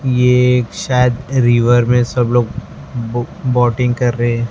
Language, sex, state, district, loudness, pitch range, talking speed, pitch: Hindi, male, Maharashtra, Mumbai Suburban, -14 LUFS, 120-125 Hz, 160 wpm, 125 Hz